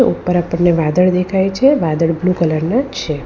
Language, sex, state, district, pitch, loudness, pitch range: Gujarati, female, Gujarat, Valsad, 175 Hz, -15 LUFS, 165-190 Hz